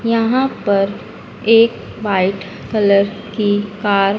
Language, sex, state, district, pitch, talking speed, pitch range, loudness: Hindi, female, Madhya Pradesh, Dhar, 205 Hz, 115 wpm, 200-225 Hz, -16 LUFS